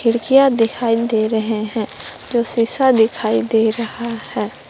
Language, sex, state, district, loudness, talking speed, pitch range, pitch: Hindi, female, Jharkhand, Palamu, -16 LUFS, 140 wpm, 220-235 Hz, 230 Hz